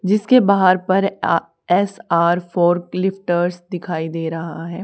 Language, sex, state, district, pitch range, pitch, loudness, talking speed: Hindi, female, Haryana, Charkhi Dadri, 170-195 Hz, 180 Hz, -18 LUFS, 135 wpm